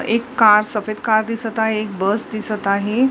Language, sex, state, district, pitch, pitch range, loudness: Marathi, female, Maharashtra, Mumbai Suburban, 215 Hz, 210-225 Hz, -18 LUFS